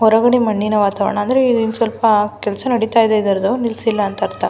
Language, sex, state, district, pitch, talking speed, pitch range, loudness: Kannada, female, Karnataka, Mysore, 220 Hz, 160 wpm, 210-230 Hz, -16 LUFS